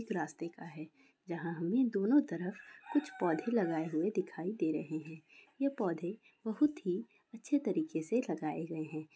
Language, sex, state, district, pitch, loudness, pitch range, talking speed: Hindi, female, Bihar, Sitamarhi, 180 Hz, -36 LUFS, 160-235 Hz, 170 wpm